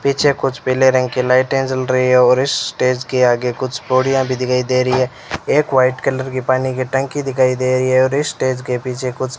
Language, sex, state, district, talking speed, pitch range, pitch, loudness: Hindi, male, Rajasthan, Bikaner, 250 wpm, 125-130 Hz, 130 Hz, -16 LUFS